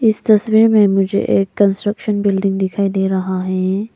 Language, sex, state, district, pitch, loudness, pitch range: Hindi, female, Arunachal Pradesh, Lower Dibang Valley, 200 Hz, -15 LUFS, 190-210 Hz